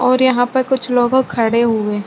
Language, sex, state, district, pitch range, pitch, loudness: Hindi, female, Chhattisgarh, Bilaspur, 230-260 Hz, 245 Hz, -15 LUFS